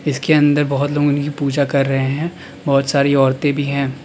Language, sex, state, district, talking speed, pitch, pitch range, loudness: Hindi, male, Uttar Pradesh, Lalitpur, 210 wpm, 140 Hz, 140-145 Hz, -17 LUFS